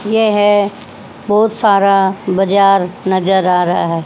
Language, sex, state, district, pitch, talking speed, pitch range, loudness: Hindi, female, Haryana, Jhajjar, 195 Hz, 105 wpm, 190-205 Hz, -13 LUFS